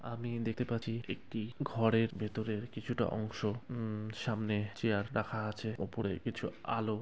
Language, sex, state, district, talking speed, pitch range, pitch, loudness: Bengali, male, West Bengal, Kolkata, 145 wpm, 105-115 Hz, 110 Hz, -37 LUFS